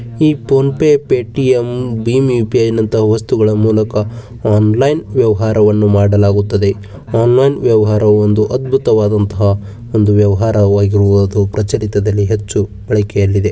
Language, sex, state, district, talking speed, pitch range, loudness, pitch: Kannada, male, Karnataka, Bijapur, 100 wpm, 105-120 Hz, -13 LUFS, 105 Hz